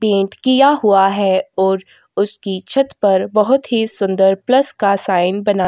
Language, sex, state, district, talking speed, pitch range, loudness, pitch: Hindi, female, Chhattisgarh, Korba, 160 wpm, 195-240 Hz, -15 LUFS, 200 Hz